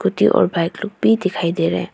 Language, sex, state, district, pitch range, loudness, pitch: Hindi, female, Arunachal Pradesh, Papum Pare, 170-210 Hz, -18 LUFS, 190 Hz